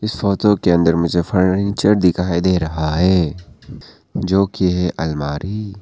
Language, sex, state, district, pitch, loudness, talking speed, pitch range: Hindi, male, Arunachal Pradesh, Papum Pare, 90 Hz, -17 LUFS, 125 wpm, 85-100 Hz